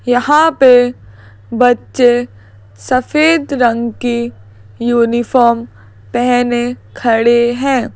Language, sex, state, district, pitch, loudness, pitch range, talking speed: Hindi, female, Madhya Pradesh, Bhopal, 240 Hz, -13 LUFS, 225-250 Hz, 75 wpm